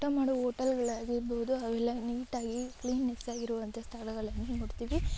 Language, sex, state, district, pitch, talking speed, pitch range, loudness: Kannada, female, Karnataka, Raichur, 240 Hz, 125 wpm, 235-255 Hz, -35 LUFS